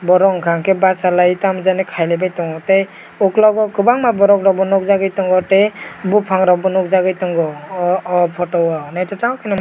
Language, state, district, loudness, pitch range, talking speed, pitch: Kokborok, Tripura, West Tripura, -15 LUFS, 180-195 Hz, 145 wpm, 190 Hz